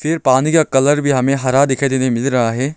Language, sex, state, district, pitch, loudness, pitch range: Hindi, male, Arunachal Pradesh, Longding, 135 Hz, -15 LUFS, 130-145 Hz